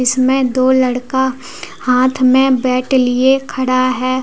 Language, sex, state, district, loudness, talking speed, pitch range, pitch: Hindi, female, Jharkhand, Deoghar, -14 LUFS, 130 wpm, 255-260 Hz, 255 Hz